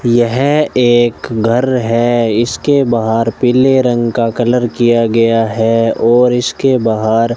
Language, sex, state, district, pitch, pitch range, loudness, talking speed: Hindi, male, Rajasthan, Bikaner, 120 Hz, 115-125 Hz, -12 LUFS, 140 wpm